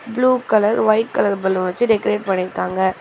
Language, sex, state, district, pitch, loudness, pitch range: Tamil, female, Tamil Nadu, Chennai, 210 Hz, -18 LUFS, 190-230 Hz